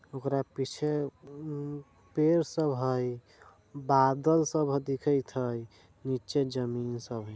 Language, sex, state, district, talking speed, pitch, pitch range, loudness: Bajjika, male, Bihar, Vaishali, 105 wpm, 135 Hz, 125-145 Hz, -30 LUFS